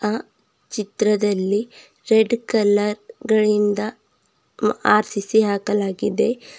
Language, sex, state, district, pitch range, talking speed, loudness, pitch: Kannada, female, Karnataka, Bidar, 205-220 Hz, 75 wpm, -20 LUFS, 210 Hz